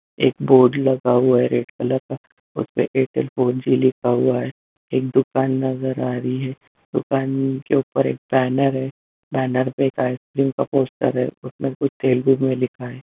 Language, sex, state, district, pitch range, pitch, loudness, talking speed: Hindi, male, Bihar, Jamui, 125-135 Hz, 130 Hz, -20 LUFS, 175 wpm